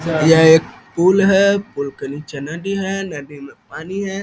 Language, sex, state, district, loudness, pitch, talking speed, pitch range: Hindi, male, Bihar, East Champaran, -16 LUFS, 165 Hz, 185 wpm, 145-195 Hz